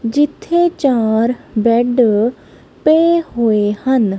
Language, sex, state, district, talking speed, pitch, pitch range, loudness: Punjabi, female, Punjab, Kapurthala, 85 wpm, 245 Hz, 225-300 Hz, -14 LUFS